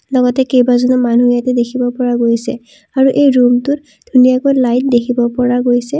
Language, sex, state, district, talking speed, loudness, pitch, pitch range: Assamese, female, Assam, Kamrup Metropolitan, 150 wpm, -12 LUFS, 250 Hz, 245-260 Hz